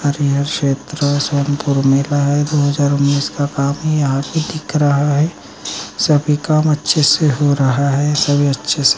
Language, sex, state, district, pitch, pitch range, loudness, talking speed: Magahi, male, Bihar, Gaya, 145 Hz, 140-150 Hz, -15 LUFS, 175 wpm